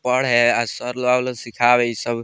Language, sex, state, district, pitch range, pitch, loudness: Bhojpuri, male, Bihar, Muzaffarpur, 120-125 Hz, 120 Hz, -19 LUFS